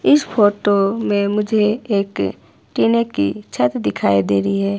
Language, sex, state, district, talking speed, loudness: Hindi, female, Himachal Pradesh, Shimla, 150 wpm, -17 LUFS